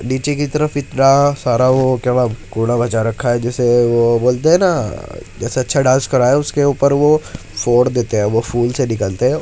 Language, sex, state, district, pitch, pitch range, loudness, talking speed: Hindi, male, Uttar Pradesh, Muzaffarnagar, 125 Hz, 115-140 Hz, -15 LUFS, 205 wpm